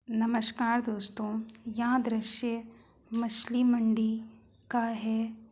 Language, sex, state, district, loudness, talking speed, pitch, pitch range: Hindi, female, Uttar Pradesh, Hamirpur, -31 LUFS, 85 wpm, 225 Hz, 220-235 Hz